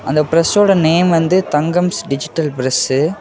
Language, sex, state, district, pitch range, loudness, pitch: Tamil, male, Tamil Nadu, Kanyakumari, 150-180 Hz, -14 LUFS, 165 Hz